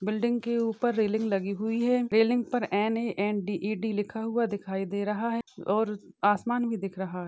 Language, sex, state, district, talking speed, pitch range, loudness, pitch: Hindi, female, Maharashtra, Sindhudurg, 220 wpm, 200-230 Hz, -28 LUFS, 215 Hz